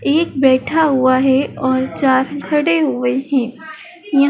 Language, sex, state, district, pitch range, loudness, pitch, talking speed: Hindi, female, Madhya Pradesh, Dhar, 260-310 Hz, -16 LUFS, 275 Hz, 140 wpm